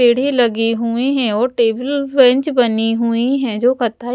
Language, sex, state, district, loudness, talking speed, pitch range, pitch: Hindi, female, Haryana, Jhajjar, -15 LUFS, 175 wpm, 230-260 Hz, 245 Hz